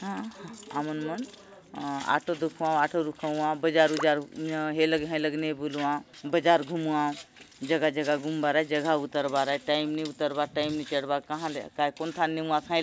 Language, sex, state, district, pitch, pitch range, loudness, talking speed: Chhattisgarhi, male, Chhattisgarh, Bastar, 155 Hz, 150-160 Hz, -28 LUFS, 180 wpm